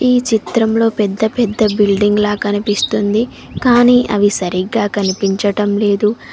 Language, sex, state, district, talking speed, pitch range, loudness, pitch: Telugu, female, Telangana, Mahabubabad, 115 wpm, 205-225 Hz, -14 LUFS, 210 Hz